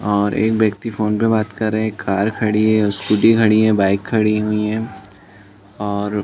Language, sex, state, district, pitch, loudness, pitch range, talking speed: Hindi, male, Chhattisgarh, Balrampur, 105 Hz, -17 LUFS, 100-110 Hz, 200 wpm